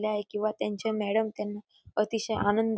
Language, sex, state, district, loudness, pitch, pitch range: Marathi, female, Maharashtra, Dhule, -30 LUFS, 215 Hz, 210-220 Hz